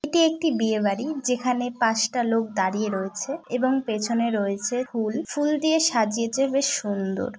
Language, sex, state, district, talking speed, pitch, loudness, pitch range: Bengali, female, West Bengal, Dakshin Dinajpur, 160 wpm, 240 Hz, -24 LUFS, 215-275 Hz